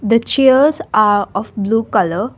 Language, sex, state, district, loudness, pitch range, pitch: English, female, Assam, Kamrup Metropolitan, -14 LUFS, 205-260 Hz, 225 Hz